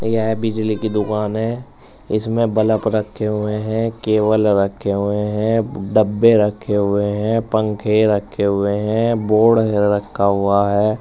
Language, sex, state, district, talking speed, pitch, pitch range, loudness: Hindi, male, Uttar Pradesh, Saharanpur, 155 wpm, 110 Hz, 105-110 Hz, -17 LUFS